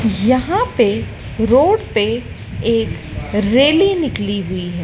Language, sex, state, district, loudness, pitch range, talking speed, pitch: Hindi, female, Madhya Pradesh, Dhar, -16 LUFS, 175-275 Hz, 110 wpm, 220 Hz